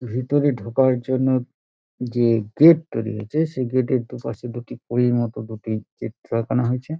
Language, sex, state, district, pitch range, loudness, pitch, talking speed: Bengali, male, West Bengal, Dakshin Dinajpur, 115-130 Hz, -21 LUFS, 125 Hz, 165 wpm